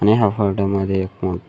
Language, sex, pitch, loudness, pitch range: Marathi, male, 100 Hz, -19 LUFS, 95-105 Hz